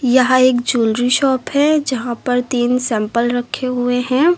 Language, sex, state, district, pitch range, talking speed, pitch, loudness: Hindi, female, Uttar Pradesh, Lucknow, 245-255 Hz, 165 wpm, 250 Hz, -16 LUFS